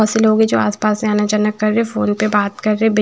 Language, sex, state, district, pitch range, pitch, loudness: Hindi, female, Himachal Pradesh, Shimla, 210-220 Hz, 215 Hz, -16 LUFS